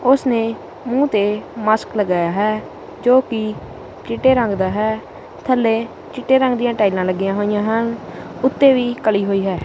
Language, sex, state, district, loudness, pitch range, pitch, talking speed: Punjabi, male, Punjab, Kapurthala, -18 LUFS, 205-250 Hz, 225 Hz, 150 wpm